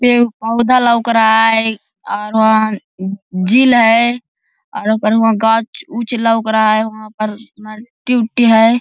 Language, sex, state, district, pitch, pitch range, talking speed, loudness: Hindi, male, Jharkhand, Sahebganj, 225 Hz, 215-235 Hz, 155 wpm, -13 LUFS